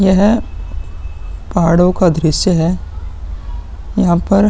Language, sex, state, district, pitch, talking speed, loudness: Hindi, male, Uttar Pradesh, Muzaffarnagar, 140 Hz, 105 wpm, -14 LUFS